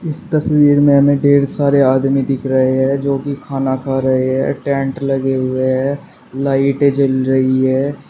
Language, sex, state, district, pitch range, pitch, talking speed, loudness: Hindi, male, Uttar Pradesh, Shamli, 130-140 Hz, 135 Hz, 170 wpm, -15 LUFS